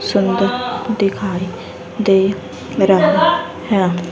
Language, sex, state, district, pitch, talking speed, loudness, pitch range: Hindi, female, Haryana, Rohtak, 195 Hz, 75 wpm, -16 LUFS, 185-200 Hz